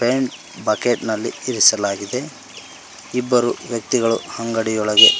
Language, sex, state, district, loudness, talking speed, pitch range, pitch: Kannada, male, Karnataka, Koppal, -18 LUFS, 90 wpm, 110-125 Hz, 115 Hz